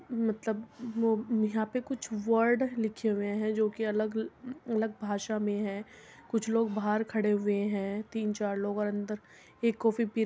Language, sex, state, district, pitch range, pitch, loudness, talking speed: Hindi, female, Uttar Pradesh, Muzaffarnagar, 210-225 Hz, 220 Hz, -31 LUFS, 180 wpm